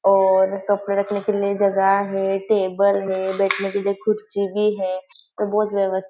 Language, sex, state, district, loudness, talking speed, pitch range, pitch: Hindi, female, Maharashtra, Nagpur, -20 LUFS, 175 wpm, 195-200 Hz, 200 Hz